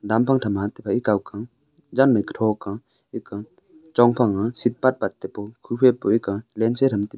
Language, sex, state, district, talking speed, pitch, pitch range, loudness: Wancho, male, Arunachal Pradesh, Longding, 185 wpm, 115 Hz, 105-130 Hz, -22 LUFS